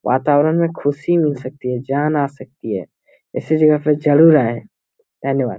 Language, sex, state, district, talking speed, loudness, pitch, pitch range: Hindi, male, Uttar Pradesh, Muzaffarnagar, 120 wpm, -17 LUFS, 145 Hz, 130-155 Hz